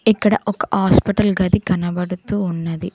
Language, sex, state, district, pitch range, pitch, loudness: Telugu, female, Telangana, Mahabubabad, 180-210 Hz, 190 Hz, -18 LUFS